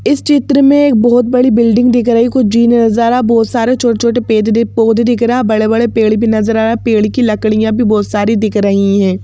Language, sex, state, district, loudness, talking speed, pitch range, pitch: Hindi, female, Madhya Pradesh, Bhopal, -11 LUFS, 235 wpm, 220-240 Hz, 230 Hz